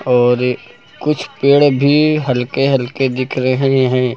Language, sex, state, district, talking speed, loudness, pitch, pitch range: Hindi, male, Uttar Pradesh, Lucknow, 130 wpm, -14 LUFS, 130 Hz, 125-140 Hz